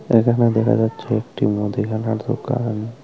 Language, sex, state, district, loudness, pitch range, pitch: Bengali, male, Tripura, Unakoti, -20 LUFS, 110-120 Hz, 110 Hz